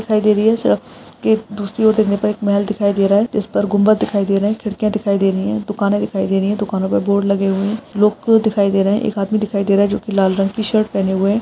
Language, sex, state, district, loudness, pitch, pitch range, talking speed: Hindi, female, Rajasthan, Nagaur, -16 LUFS, 205 Hz, 200-215 Hz, 310 wpm